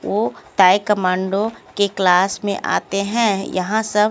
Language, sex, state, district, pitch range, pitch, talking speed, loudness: Hindi, female, Haryana, Jhajjar, 190-210 Hz, 200 Hz, 145 wpm, -18 LUFS